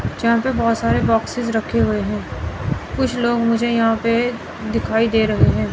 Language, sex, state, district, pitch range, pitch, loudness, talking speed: Hindi, female, Chandigarh, Chandigarh, 145-235 Hz, 230 Hz, -19 LUFS, 180 wpm